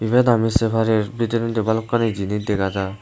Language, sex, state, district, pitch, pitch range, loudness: Chakma, male, Tripura, Unakoti, 110 Hz, 105-115 Hz, -20 LUFS